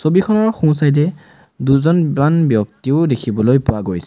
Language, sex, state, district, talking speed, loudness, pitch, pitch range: Assamese, male, Assam, Sonitpur, 105 wpm, -15 LUFS, 150 Hz, 125-165 Hz